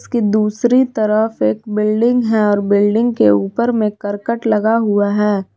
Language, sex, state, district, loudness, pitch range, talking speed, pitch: Hindi, female, Jharkhand, Garhwa, -15 LUFS, 205-230 Hz, 160 wpm, 215 Hz